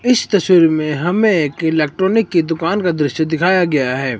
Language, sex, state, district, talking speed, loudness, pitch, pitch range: Hindi, male, Himachal Pradesh, Shimla, 185 wpm, -15 LUFS, 170 Hz, 155-190 Hz